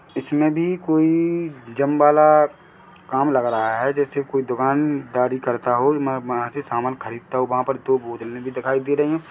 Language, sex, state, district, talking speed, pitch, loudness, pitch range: Hindi, male, Chhattisgarh, Bilaspur, 180 wpm, 135 Hz, -20 LUFS, 125-150 Hz